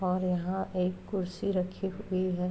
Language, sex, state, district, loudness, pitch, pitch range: Hindi, female, Uttar Pradesh, Varanasi, -32 LUFS, 185 Hz, 180-190 Hz